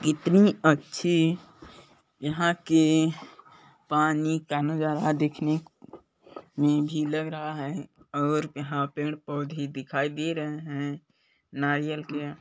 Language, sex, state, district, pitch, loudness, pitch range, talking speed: Hindi, male, Chhattisgarh, Balrampur, 150 Hz, -27 LUFS, 145-155 Hz, 105 wpm